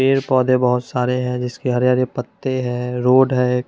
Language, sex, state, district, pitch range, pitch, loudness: Hindi, male, Chandigarh, Chandigarh, 125-130 Hz, 125 Hz, -18 LUFS